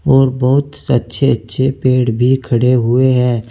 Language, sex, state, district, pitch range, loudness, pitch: Hindi, male, Uttar Pradesh, Saharanpur, 120-135 Hz, -14 LUFS, 125 Hz